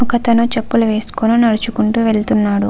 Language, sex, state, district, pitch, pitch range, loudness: Telugu, female, Andhra Pradesh, Visakhapatnam, 225 Hz, 215-235 Hz, -15 LUFS